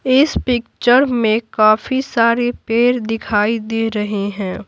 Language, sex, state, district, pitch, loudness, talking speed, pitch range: Hindi, female, Bihar, Patna, 230 Hz, -16 LUFS, 130 wpm, 215-245 Hz